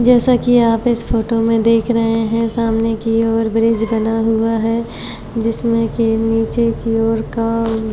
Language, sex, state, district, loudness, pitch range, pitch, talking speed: Hindi, female, Maharashtra, Chandrapur, -16 LUFS, 225-230 Hz, 225 Hz, 165 wpm